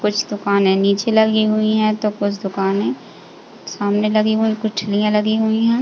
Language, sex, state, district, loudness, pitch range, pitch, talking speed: Hindi, female, Uttar Pradesh, Jalaun, -17 LUFS, 205-220 Hz, 210 Hz, 175 wpm